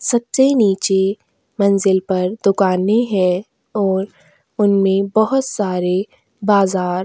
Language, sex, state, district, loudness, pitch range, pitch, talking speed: Hindi, female, Goa, North and South Goa, -17 LUFS, 190-215 Hz, 195 Hz, 100 wpm